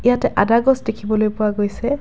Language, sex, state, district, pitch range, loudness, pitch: Assamese, female, Assam, Kamrup Metropolitan, 210-255 Hz, -18 LUFS, 220 Hz